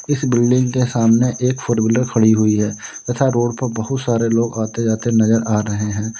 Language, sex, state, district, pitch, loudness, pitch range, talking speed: Hindi, male, Uttar Pradesh, Lalitpur, 115 Hz, -17 LUFS, 110-125 Hz, 215 wpm